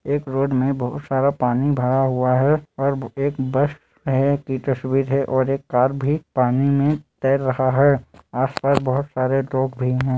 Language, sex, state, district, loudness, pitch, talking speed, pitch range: Hindi, male, Bihar, Madhepura, -20 LUFS, 135 Hz, 190 wpm, 130-140 Hz